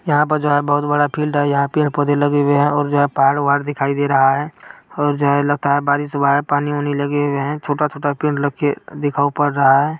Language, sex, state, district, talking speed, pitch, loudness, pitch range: Maithili, male, Bihar, Purnia, 235 wpm, 145 Hz, -17 LUFS, 140-145 Hz